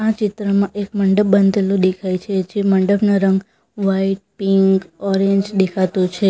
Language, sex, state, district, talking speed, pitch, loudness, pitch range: Gujarati, female, Gujarat, Valsad, 135 wpm, 195 Hz, -17 LUFS, 190-200 Hz